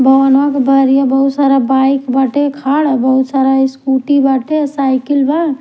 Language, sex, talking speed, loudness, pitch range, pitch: Bhojpuri, female, 150 wpm, -12 LUFS, 265-285 Hz, 270 Hz